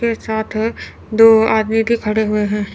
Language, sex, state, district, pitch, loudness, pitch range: Hindi, female, Chandigarh, Chandigarh, 220 Hz, -15 LUFS, 215-225 Hz